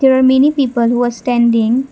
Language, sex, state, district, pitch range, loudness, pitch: English, female, Assam, Kamrup Metropolitan, 235-265 Hz, -13 LUFS, 245 Hz